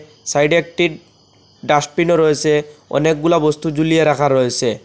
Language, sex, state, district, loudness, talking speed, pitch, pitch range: Bengali, male, Assam, Hailakandi, -16 LUFS, 135 wpm, 150 Hz, 145-165 Hz